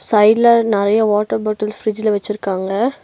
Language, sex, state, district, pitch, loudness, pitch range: Tamil, female, Tamil Nadu, Nilgiris, 215 Hz, -16 LUFS, 210-220 Hz